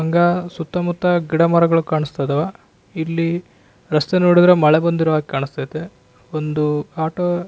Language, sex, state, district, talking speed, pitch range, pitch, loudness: Kannada, male, Karnataka, Raichur, 135 wpm, 150-175 Hz, 165 Hz, -18 LUFS